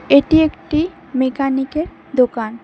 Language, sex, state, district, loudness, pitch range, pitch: Bengali, female, West Bengal, Cooch Behar, -17 LUFS, 260-310 Hz, 275 Hz